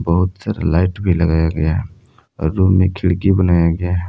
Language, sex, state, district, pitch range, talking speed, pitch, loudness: Hindi, male, Jharkhand, Palamu, 85-95 Hz, 205 wpm, 90 Hz, -16 LUFS